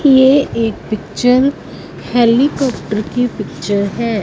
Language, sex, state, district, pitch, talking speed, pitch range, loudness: Hindi, female, Punjab, Fazilka, 235 Hz, 100 wpm, 215-265 Hz, -15 LUFS